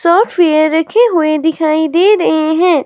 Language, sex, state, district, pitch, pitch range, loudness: Hindi, female, Himachal Pradesh, Shimla, 325 Hz, 315-360 Hz, -11 LUFS